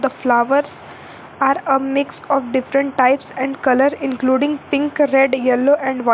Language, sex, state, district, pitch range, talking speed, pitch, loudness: English, female, Jharkhand, Garhwa, 260-280 Hz, 155 wpm, 270 Hz, -17 LUFS